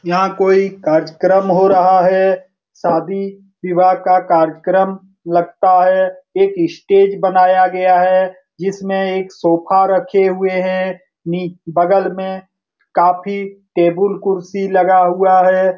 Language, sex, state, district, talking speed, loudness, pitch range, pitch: Hindi, male, Bihar, Lakhisarai, 120 wpm, -14 LUFS, 180-195 Hz, 185 Hz